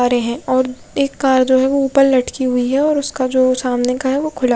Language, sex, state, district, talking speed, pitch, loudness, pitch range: Hindi, female, Odisha, Khordha, 275 wpm, 260 Hz, -16 LUFS, 250-275 Hz